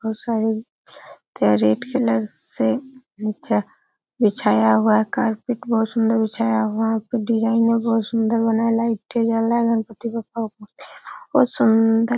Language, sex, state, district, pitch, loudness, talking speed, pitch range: Hindi, female, Uttar Pradesh, Hamirpur, 225 Hz, -20 LUFS, 145 wpm, 215-230 Hz